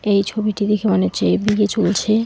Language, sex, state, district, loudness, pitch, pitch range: Bengali, female, West Bengal, Alipurduar, -18 LUFS, 210 Hz, 195-215 Hz